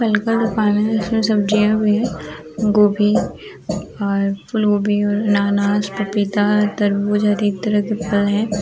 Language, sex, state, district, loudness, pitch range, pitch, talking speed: Hindi, female, Jharkhand, Jamtara, -18 LUFS, 205-215 Hz, 210 Hz, 140 wpm